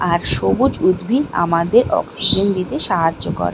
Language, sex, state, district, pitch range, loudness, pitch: Bengali, female, West Bengal, Malda, 165-240 Hz, -17 LUFS, 180 Hz